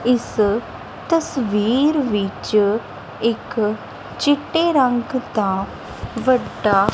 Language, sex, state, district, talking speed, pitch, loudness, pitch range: Punjabi, female, Punjab, Kapurthala, 70 wpm, 230 Hz, -20 LUFS, 210-265 Hz